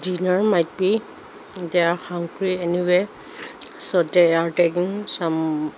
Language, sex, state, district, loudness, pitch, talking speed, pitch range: Nagamese, female, Nagaland, Dimapur, -20 LUFS, 175 Hz, 60 wpm, 170-185 Hz